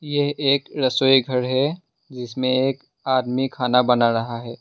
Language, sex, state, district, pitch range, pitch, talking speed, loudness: Hindi, male, Assam, Sonitpur, 125-135 Hz, 130 Hz, 155 wpm, -20 LUFS